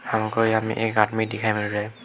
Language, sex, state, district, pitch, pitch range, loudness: Hindi, male, Arunachal Pradesh, Lower Dibang Valley, 110 Hz, 105-110 Hz, -23 LUFS